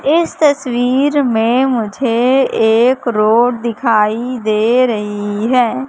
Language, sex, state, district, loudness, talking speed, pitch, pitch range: Hindi, female, Madhya Pradesh, Katni, -14 LUFS, 100 wpm, 240 Hz, 225-260 Hz